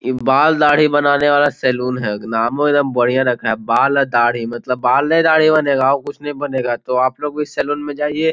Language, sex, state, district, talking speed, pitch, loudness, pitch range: Hindi, male, Bihar, Gopalganj, 200 wpm, 140 Hz, -16 LUFS, 125-145 Hz